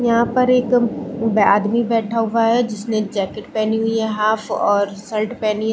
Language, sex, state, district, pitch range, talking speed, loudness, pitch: Hindi, female, Chhattisgarh, Bilaspur, 215-230 Hz, 165 wpm, -18 LUFS, 220 Hz